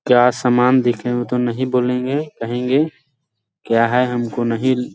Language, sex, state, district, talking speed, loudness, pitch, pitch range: Hindi, male, Bihar, Sitamarhi, 170 wpm, -18 LUFS, 125 Hz, 120-130 Hz